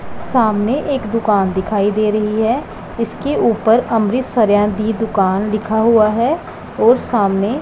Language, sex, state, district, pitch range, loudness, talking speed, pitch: Hindi, female, Punjab, Pathankot, 210-230 Hz, -16 LUFS, 140 wpm, 220 Hz